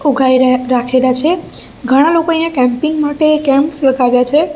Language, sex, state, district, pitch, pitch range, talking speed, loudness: Gujarati, female, Gujarat, Gandhinagar, 275 Hz, 255-310 Hz, 160 wpm, -12 LUFS